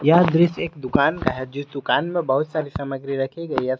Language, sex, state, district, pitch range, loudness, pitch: Hindi, male, Jharkhand, Garhwa, 135-165 Hz, -22 LUFS, 140 Hz